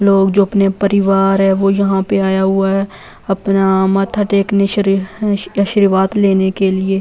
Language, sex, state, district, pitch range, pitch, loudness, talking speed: Hindi, female, Delhi, New Delhi, 195-200 Hz, 195 Hz, -14 LUFS, 160 wpm